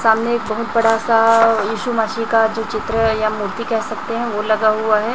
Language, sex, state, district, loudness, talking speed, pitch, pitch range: Hindi, female, Chhattisgarh, Raipur, -17 LUFS, 235 wpm, 225 Hz, 220-230 Hz